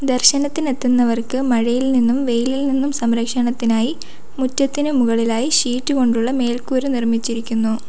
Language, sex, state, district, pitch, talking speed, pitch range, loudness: Malayalam, female, Kerala, Kollam, 250 Hz, 100 wpm, 235-265 Hz, -18 LUFS